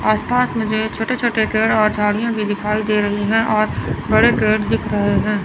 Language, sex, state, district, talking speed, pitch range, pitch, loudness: Hindi, male, Chandigarh, Chandigarh, 210 wpm, 210-225 Hz, 215 Hz, -17 LUFS